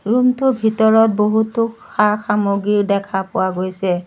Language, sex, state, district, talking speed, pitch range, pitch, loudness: Assamese, female, Assam, Sonitpur, 105 wpm, 200-225 Hz, 210 Hz, -17 LUFS